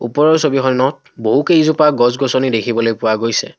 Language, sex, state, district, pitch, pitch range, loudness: Assamese, male, Assam, Kamrup Metropolitan, 130 Hz, 115-150 Hz, -14 LUFS